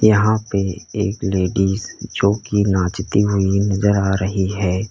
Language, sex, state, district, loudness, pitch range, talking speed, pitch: Hindi, male, Uttar Pradesh, Lalitpur, -19 LUFS, 95-105 Hz, 145 wpm, 100 Hz